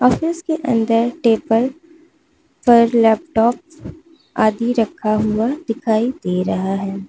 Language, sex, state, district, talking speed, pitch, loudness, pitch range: Hindi, female, Uttar Pradesh, Lalitpur, 110 wpm, 235 Hz, -17 LUFS, 220-310 Hz